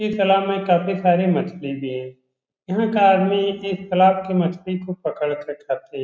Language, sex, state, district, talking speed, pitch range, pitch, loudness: Hindi, male, Uttar Pradesh, Etah, 190 wpm, 150-195 Hz, 185 Hz, -20 LUFS